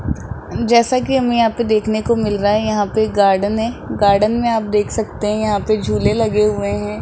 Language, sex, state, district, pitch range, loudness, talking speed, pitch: Hindi, male, Rajasthan, Jaipur, 205-225 Hz, -17 LUFS, 220 wpm, 215 Hz